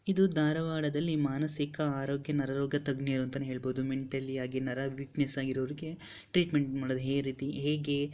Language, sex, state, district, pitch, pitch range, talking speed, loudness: Kannada, female, Karnataka, Dharwad, 140 Hz, 135-150 Hz, 140 wpm, -33 LUFS